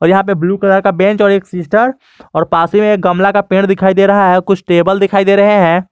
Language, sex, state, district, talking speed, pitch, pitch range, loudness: Hindi, male, Jharkhand, Garhwa, 285 wpm, 195 Hz, 180-200 Hz, -11 LUFS